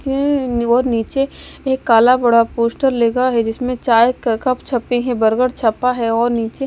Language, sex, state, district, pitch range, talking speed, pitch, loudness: Hindi, female, Bihar, West Champaran, 230-255 Hz, 170 wpm, 245 Hz, -16 LUFS